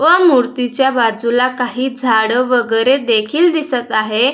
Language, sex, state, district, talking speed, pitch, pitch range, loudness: Marathi, female, Maharashtra, Dhule, 125 wpm, 250 Hz, 235-265 Hz, -14 LUFS